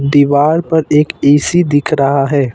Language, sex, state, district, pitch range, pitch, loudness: Hindi, male, Jharkhand, Ranchi, 140-155 Hz, 145 Hz, -12 LUFS